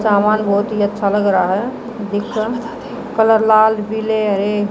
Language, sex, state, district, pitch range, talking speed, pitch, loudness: Hindi, female, Haryana, Jhajjar, 205-220 Hz, 155 wpm, 215 Hz, -16 LUFS